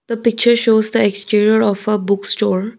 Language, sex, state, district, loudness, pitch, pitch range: English, female, Assam, Kamrup Metropolitan, -14 LUFS, 215 Hz, 205-225 Hz